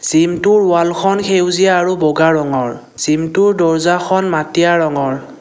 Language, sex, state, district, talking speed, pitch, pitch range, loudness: Assamese, male, Assam, Kamrup Metropolitan, 110 wpm, 170 Hz, 155-185 Hz, -14 LUFS